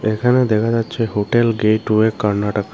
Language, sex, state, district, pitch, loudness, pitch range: Bengali, male, Tripura, Unakoti, 110 Hz, -17 LUFS, 105-115 Hz